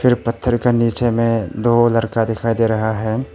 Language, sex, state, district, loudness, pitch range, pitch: Hindi, male, Arunachal Pradesh, Papum Pare, -17 LUFS, 115-120 Hz, 115 Hz